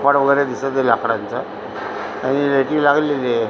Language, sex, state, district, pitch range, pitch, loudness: Marathi, female, Maharashtra, Aurangabad, 125-140 Hz, 135 Hz, -18 LUFS